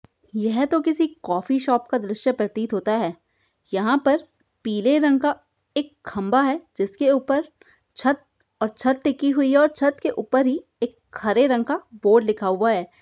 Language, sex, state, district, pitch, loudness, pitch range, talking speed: Hindi, female, Uttar Pradesh, Budaun, 260 Hz, -22 LUFS, 215-285 Hz, 180 wpm